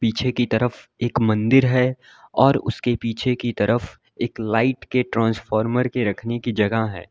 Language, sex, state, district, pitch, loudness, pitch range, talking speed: Hindi, male, Uttar Pradesh, Lalitpur, 115 Hz, -21 LUFS, 110-125 Hz, 170 wpm